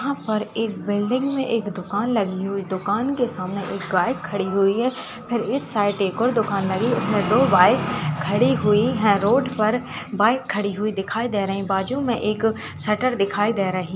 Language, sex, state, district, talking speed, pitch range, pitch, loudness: Hindi, female, Uttar Pradesh, Ghazipur, 220 wpm, 195-235 Hz, 210 Hz, -22 LUFS